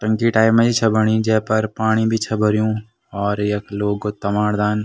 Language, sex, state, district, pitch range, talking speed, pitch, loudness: Garhwali, male, Uttarakhand, Tehri Garhwal, 105-110 Hz, 225 wpm, 110 Hz, -18 LUFS